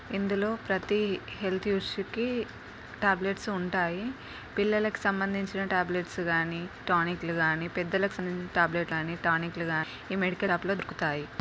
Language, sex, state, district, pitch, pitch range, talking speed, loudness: Telugu, female, Telangana, Nalgonda, 185 Hz, 170-200 Hz, 140 wpm, -30 LUFS